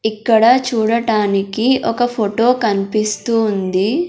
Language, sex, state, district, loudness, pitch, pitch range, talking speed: Telugu, female, Andhra Pradesh, Sri Satya Sai, -15 LUFS, 220 Hz, 210-240 Hz, 90 wpm